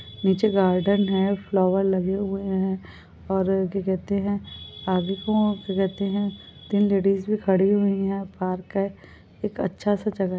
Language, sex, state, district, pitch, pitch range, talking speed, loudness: Hindi, female, Goa, North and South Goa, 195 Hz, 190-200 Hz, 140 wpm, -24 LUFS